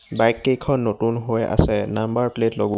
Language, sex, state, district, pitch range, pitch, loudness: Assamese, male, Assam, Hailakandi, 110-120 Hz, 115 Hz, -21 LUFS